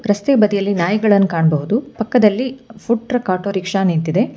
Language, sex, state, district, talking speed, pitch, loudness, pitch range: Kannada, female, Karnataka, Bangalore, 125 wpm, 205 Hz, -16 LUFS, 190-235 Hz